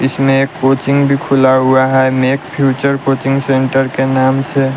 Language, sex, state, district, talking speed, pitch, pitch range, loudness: Hindi, male, Bihar, West Champaran, 175 wpm, 135 Hz, 130-135 Hz, -12 LUFS